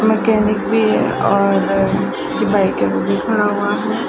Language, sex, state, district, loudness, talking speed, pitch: Hindi, female, Bihar, Gaya, -16 LUFS, 145 wpm, 205 Hz